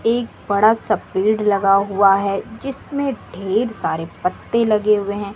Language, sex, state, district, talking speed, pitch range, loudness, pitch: Hindi, female, Bihar, West Champaran, 155 wpm, 195-225 Hz, -19 LUFS, 205 Hz